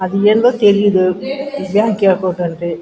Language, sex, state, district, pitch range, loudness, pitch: Telugu, female, Andhra Pradesh, Guntur, 185-215 Hz, -14 LUFS, 195 Hz